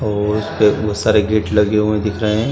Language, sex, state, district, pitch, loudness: Hindi, male, Bihar, Saran, 105 Hz, -16 LUFS